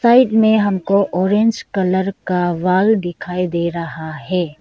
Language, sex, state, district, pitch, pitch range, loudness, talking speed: Hindi, female, Arunachal Pradesh, Lower Dibang Valley, 185 Hz, 175-205 Hz, -17 LUFS, 145 wpm